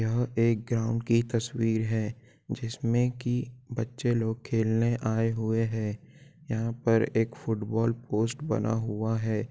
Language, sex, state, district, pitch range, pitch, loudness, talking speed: Hindi, male, Jharkhand, Jamtara, 110-120 Hz, 115 Hz, -29 LUFS, 140 wpm